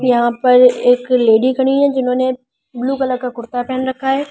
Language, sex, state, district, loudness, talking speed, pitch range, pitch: Hindi, female, Delhi, New Delhi, -15 LUFS, 195 wpm, 245-260 Hz, 250 Hz